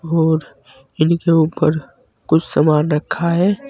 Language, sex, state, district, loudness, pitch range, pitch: Hindi, male, Uttar Pradesh, Saharanpur, -17 LUFS, 155-170 Hz, 160 Hz